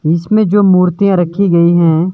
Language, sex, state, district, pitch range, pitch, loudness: Hindi, male, Himachal Pradesh, Shimla, 170-200 Hz, 180 Hz, -11 LUFS